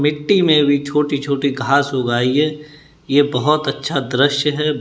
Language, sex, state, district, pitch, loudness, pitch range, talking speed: Hindi, male, Uttar Pradesh, Saharanpur, 145 Hz, -17 LUFS, 140-150 Hz, 160 wpm